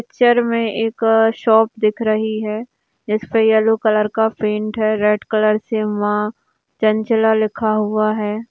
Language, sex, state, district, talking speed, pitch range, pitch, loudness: Hindi, female, Rajasthan, Churu, 150 wpm, 215-225 Hz, 220 Hz, -17 LUFS